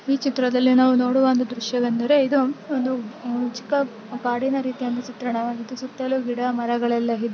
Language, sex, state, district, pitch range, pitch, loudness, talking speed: Kannada, female, Karnataka, Bellary, 240-260 Hz, 250 Hz, -22 LUFS, 155 wpm